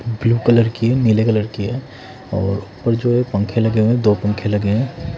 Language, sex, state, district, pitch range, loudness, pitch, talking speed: Hindi, male, Odisha, Khordha, 105-120 Hz, -17 LUFS, 115 Hz, 220 wpm